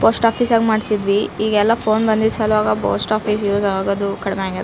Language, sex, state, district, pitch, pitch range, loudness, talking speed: Kannada, female, Karnataka, Raichur, 215 Hz, 200-220 Hz, -17 LUFS, 180 wpm